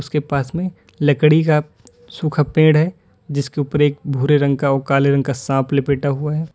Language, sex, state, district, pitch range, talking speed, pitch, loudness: Hindi, male, Uttar Pradesh, Lalitpur, 140-150 Hz, 200 wpm, 145 Hz, -17 LUFS